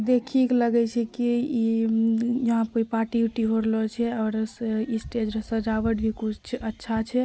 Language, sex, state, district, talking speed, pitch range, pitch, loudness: Maithili, female, Bihar, Purnia, 175 wpm, 220-235 Hz, 225 Hz, -25 LUFS